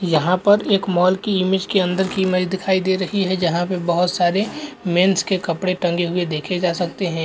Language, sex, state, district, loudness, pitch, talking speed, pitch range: Hindi, male, Uttarakhand, Uttarkashi, -19 LUFS, 185 Hz, 225 wpm, 175-190 Hz